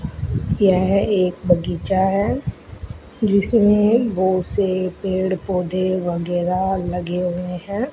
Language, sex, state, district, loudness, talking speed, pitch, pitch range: Hindi, female, Rajasthan, Bikaner, -19 LUFS, 90 wpm, 185 Hz, 180-200 Hz